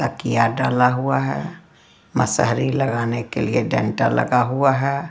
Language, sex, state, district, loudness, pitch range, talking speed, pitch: Hindi, female, Bihar, Patna, -20 LUFS, 115-135 Hz, 140 wpm, 125 Hz